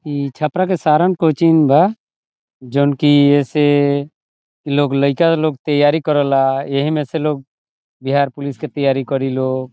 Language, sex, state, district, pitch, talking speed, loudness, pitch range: Bhojpuri, male, Bihar, Saran, 145 Hz, 140 wpm, -16 LUFS, 140-155 Hz